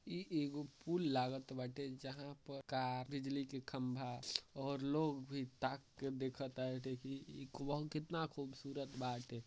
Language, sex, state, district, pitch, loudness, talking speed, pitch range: Bhojpuri, male, Uttar Pradesh, Deoria, 135 Hz, -44 LUFS, 135 wpm, 130-140 Hz